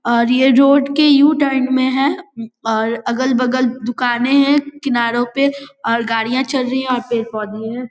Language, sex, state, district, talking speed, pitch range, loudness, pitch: Hindi, female, Bihar, Vaishali, 165 wpm, 235-275 Hz, -16 LUFS, 255 Hz